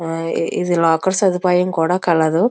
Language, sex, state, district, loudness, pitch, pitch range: Telugu, female, Andhra Pradesh, Visakhapatnam, -17 LUFS, 175 Hz, 165-185 Hz